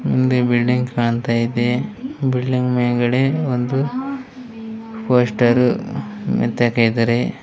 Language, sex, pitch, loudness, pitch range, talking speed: Kannada, male, 125 Hz, -18 LUFS, 120-200 Hz, 75 wpm